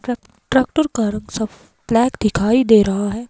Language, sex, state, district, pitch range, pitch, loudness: Hindi, female, Himachal Pradesh, Shimla, 215-245 Hz, 230 Hz, -17 LUFS